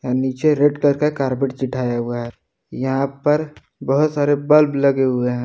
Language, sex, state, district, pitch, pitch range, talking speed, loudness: Hindi, male, Jharkhand, Palamu, 135 Hz, 125-145 Hz, 175 wpm, -18 LUFS